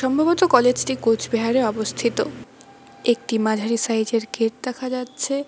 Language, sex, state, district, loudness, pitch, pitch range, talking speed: Bengali, female, West Bengal, Cooch Behar, -21 LUFS, 240 Hz, 225-260 Hz, 130 wpm